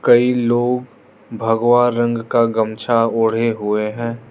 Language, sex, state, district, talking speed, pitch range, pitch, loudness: Hindi, male, Arunachal Pradesh, Lower Dibang Valley, 125 wpm, 115-120 Hz, 115 Hz, -17 LUFS